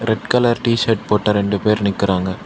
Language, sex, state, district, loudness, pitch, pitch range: Tamil, male, Tamil Nadu, Kanyakumari, -17 LUFS, 105 Hz, 100-115 Hz